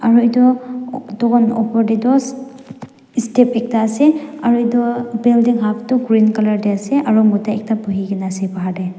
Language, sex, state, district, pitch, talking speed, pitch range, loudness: Nagamese, female, Nagaland, Dimapur, 235 Hz, 165 wpm, 215-250 Hz, -16 LUFS